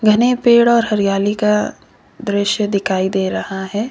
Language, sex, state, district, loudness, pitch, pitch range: Hindi, female, Uttar Pradesh, Lalitpur, -16 LUFS, 210 Hz, 195-230 Hz